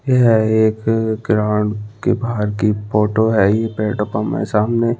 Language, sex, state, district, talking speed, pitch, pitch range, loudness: Hindi, male, Chhattisgarh, Balrampur, 155 wpm, 110 Hz, 105-115 Hz, -17 LUFS